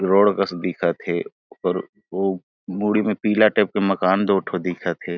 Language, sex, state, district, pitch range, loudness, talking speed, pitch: Chhattisgarhi, male, Chhattisgarh, Jashpur, 90-105 Hz, -21 LUFS, 185 wpm, 95 Hz